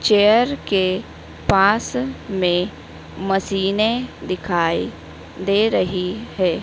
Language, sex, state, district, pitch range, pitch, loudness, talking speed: Hindi, female, Madhya Pradesh, Dhar, 185-210 Hz, 195 Hz, -20 LUFS, 80 wpm